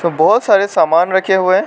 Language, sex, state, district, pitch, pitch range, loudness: Hindi, male, Arunachal Pradesh, Lower Dibang Valley, 190 Hz, 180-190 Hz, -13 LUFS